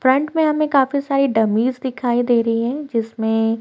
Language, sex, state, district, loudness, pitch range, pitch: Hindi, female, Chhattisgarh, Korba, -18 LUFS, 230-275 Hz, 250 Hz